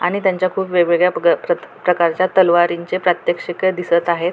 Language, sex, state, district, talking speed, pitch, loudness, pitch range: Marathi, female, Maharashtra, Pune, 125 wpm, 180 Hz, -17 LUFS, 175-190 Hz